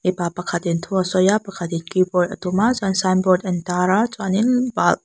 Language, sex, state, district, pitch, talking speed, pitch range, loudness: Mizo, female, Mizoram, Aizawl, 185 Hz, 215 wpm, 180-195 Hz, -20 LUFS